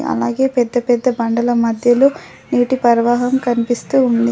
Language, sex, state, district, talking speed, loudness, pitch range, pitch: Telugu, female, Telangana, Adilabad, 125 wpm, -15 LUFS, 235-255 Hz, 240 Hz